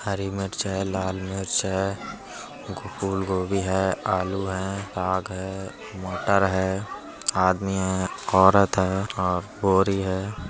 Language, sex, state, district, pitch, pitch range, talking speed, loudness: Hindi, male, Uttar Pradesh, Budaun, 95 Hz, 95-100 Hz, 120 wpm, -24 LUFS